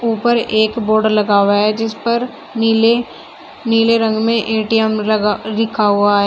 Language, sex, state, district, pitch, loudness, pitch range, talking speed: Hindi, female, Uttar Pradesh, Shamli, 220 Hz, -15 LUFS, 215-230 Hz, 165 wpm